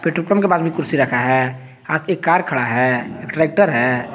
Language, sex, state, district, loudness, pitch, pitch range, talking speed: Hindi, male, Jharkhand, Garhwa, -17 LUFS, 150 Hz, 125-170 Hz, 215 wpm